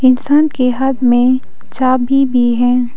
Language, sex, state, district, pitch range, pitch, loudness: Hindi, female, Arunachal Pradesh, Papum Pare, 245-265 Hz, 255 Hz, -13 LUFS